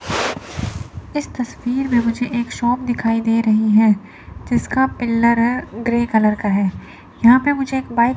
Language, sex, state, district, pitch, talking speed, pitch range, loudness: Hindi, female, Chandigarh, Chandigarh, 235 Hz, 160 wpm, 220-245 Hz, -18 LUFS